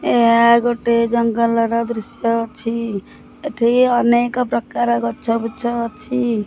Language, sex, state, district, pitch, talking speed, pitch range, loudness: Odia, male, Odisha, Khordha, 235 Hz, 100 wpm, 230-240 Hz, -17 LUFS